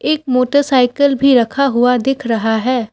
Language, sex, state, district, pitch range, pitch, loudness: Hindi, female, Assam, Kamrup Metropolitan, 240-275 Hz, 255 Hz, -14 LUFS